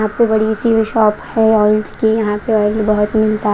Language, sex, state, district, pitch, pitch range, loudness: Hindi, female, Punjab, Kapurthala, 215 Hz, 215-220 Hz, -14 LUFS